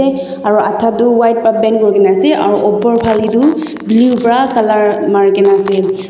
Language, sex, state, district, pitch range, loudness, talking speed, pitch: Nagamese, female, Nagaland, Dimapur, 205-235 Hz, -11 LUFS, 175 wpm, 220 Hz